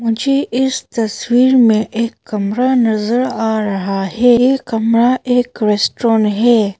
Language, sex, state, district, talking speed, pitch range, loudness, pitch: Hindi, female, Arunachal Pradesh, Papum Pare, 130 wpm, 215-245 Hz, -14 LUFS, 230 Hz